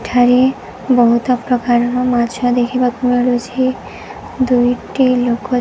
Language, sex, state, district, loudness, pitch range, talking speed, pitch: Odia, female, Odisha, Sambalpur, -15 LUFS, 245-255 Hz, 130 wpm, 245 Hz